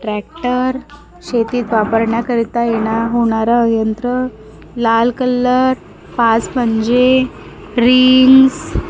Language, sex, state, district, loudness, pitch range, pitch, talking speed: Marathi, female, Maharashtra, Gondia, -14 LUFS, 225-255 Hz, 240 Hz, 80 wpm